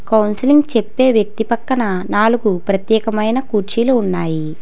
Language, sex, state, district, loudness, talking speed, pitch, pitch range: Telugu, female, Telangana, Hyderabad, -16 LUFS, 105 wpm, 220 Hz, 195-235 Hz